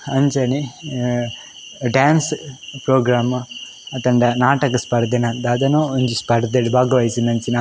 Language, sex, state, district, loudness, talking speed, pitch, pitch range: Tulu, male, Karnataka, Dakshina Kannada, -18 LUFS, 95 wpm, 125 Hz, 120-135 Hz